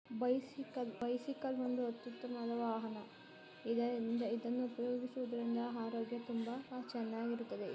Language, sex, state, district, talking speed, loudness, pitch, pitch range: Kannada, female, Karnataka, Mysore, 85 wpm, -41 LUFS, 240 Hz, 235-250 Hz